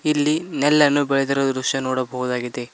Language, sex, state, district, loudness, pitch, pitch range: Kannada, male, Karnataka, Koppal, -20 LUFS, 135 Hz, 130-145 Hz